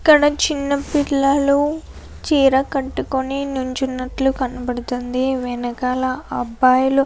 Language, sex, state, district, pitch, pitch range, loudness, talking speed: Telugu, female, Andhra Pradesh, Anantapur, 265 Hz, 255-280 Hz, -19 LUFS, 85 wpm